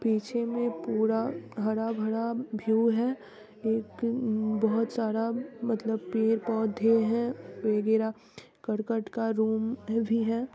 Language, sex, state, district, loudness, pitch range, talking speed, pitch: Hindi, female, Bihar, East Champaran, -29 LUFS, 220-230 Hz, 115 wpm, 225 Hz